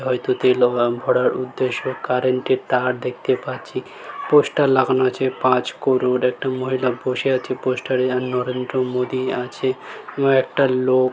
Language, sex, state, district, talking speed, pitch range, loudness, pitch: Bengali, male, West Bengal, Dakshin Dinajpur, 160 wpm, 125-130 Hz, -20 LUFS, 130 Hz